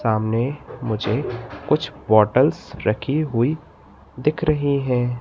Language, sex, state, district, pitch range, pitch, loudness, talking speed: Hindi, male, Madhya Pradesh, Katni, 110-150 Hz, 130 Hz, -21 LUFS, 105 wpm